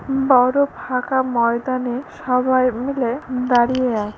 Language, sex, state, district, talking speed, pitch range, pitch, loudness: Bengali, female, West Bengal, Paschim Medinipur, 100 wpm, 245-260 Hz, 255 Hz, -19 LUFS